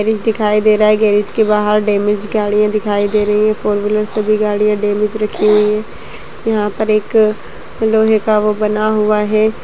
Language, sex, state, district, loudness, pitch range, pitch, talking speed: Kumaoni, female, Uttarakhand, Uttarkashi, -14 LUFS, 210-215 Hz, 210 Hz, 195 wpm